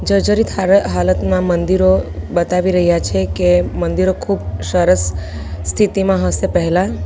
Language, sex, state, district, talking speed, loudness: Gujarati, female, Gujarat, Valsad, 120 wpm, -15 LUFS